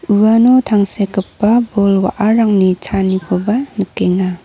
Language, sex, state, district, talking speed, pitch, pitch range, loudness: Garo, female, Meghalaya, North Garo Hills, 80 wpm, 200 Hz, 190-220 Hz, -13 LUFS